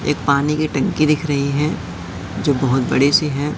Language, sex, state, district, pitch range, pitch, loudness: Hindi, male, Madhya Pradesh, Katni, 100-150 Hz, 140 Hz, -18 LUFS